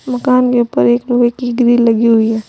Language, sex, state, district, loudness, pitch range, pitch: Hindi, female, Uttar Pradesh, Saharanpur, -12 LUFS, 230-245 Hz, 240 Hz